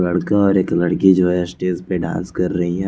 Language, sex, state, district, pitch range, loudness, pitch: Hindi, male, Chandigarh, Chandigarh, 90-95 Hz, -17 LUFS, 90 Hz